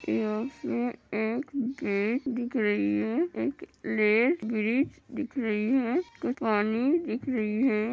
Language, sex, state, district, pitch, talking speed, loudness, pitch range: Hindi, female, Uttar Pradesh, Hamirpur, 240 Hz, 120 wpm, -28 LUFS, 215-265 Hz